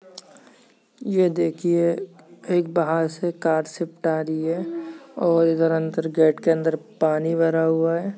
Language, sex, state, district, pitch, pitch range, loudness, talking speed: Hindi, female, Maharashtra, Nagpur, 165 Hz, 160-185 Hz, -22 LUFS, 145 wpm